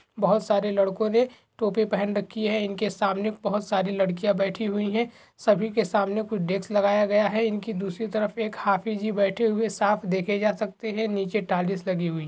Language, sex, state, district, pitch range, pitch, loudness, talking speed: Hindi, male, Jharkhand, Jamtara, 200-215 Hz, 210 Hz, -25 LUFS, 215 wpm